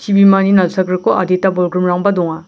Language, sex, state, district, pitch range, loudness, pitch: Garo, male, Meghalaya, South Garo Hills, 180-195 Hz, -13 LUFS, 185 Hz